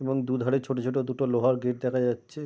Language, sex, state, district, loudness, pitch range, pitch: Bengali, male, West Bengal, Jalpaiguri, -27 LUFS, 125-135 Hz, 130 Hz